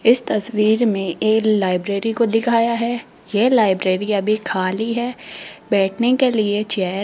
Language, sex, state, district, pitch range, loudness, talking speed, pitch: Hindi, female, Rajasthan, Jaipur, 200-235 Hz, -18 LUFS, 155 wpm, 215 Hz